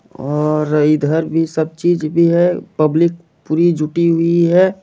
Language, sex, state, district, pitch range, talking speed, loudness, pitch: Hindi, male, Jharkhand, Jamtara, 155-170 Hz, 150 wpm, -15 LUFS, 165 Hz